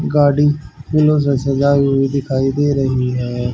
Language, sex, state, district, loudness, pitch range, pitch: Hindi, male, Haryana, Jhajjar, -16 LUFS, 130-145 Hz, 140 Hz